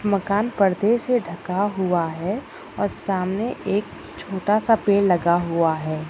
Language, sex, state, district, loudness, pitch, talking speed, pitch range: Hindi, female, Maharashtra, Nagpur, -22 LUFS, 195 Hz, 145 wpm, 175-210 Hz